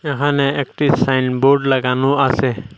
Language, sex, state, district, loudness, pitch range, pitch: Bengali, male, Assam, Hailakandi, -16 LUFS, 130-140 Hz, 135 Hz